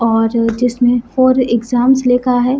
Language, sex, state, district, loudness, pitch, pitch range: Hindi, female, Bihar, Gopalganj, -13 LUFS, 245 Hz, 235-255 Hz